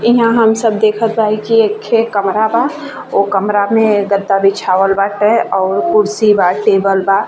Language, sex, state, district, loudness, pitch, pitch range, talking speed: Bhojpuri, female, Uttar Pradesh, Ghazipur, -12 LUFS, 210 Hz, 195-225 Hz, 165 wpm